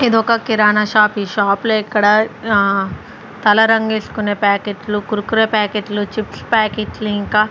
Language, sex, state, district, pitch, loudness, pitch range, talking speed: Telugu, female, Andhra Pradesh, Sri Satya Sai, 210 Hz, -16 LUFS, 205-220 Hz, 160 wpm